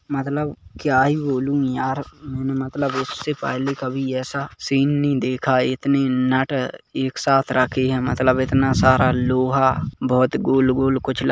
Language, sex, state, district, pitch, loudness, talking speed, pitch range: Hindi, male, Chhattisgarh, Kabirdham, 130 Hz, -20 LUFS, 150 wpm, 130-140 Hz